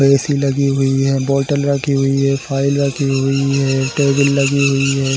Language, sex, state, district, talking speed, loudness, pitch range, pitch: Hindi, male, Chhattisgarh, Balrampur, 185 wpm, -15 LUFS, 135-140 Hz, 135 Hz